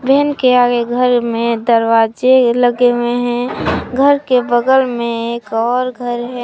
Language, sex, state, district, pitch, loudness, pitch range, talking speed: Hindi, female, Jharkhand, Palamu, 245 Hz, -14 LUFS, 235-255 Hz, 170 wpm